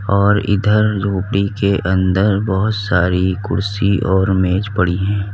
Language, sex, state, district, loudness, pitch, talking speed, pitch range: Hindi, male, Uttar Pradesh, Lalitpur, -16 LUFS, 100 Hz, 135 wpm, 95-100 Hz